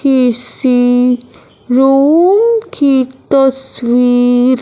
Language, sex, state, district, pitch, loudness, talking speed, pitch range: Hindi, male, Punjab, Fazilka, 260 Hz, -11 LUFS, 50 wpm, 245-275 Hz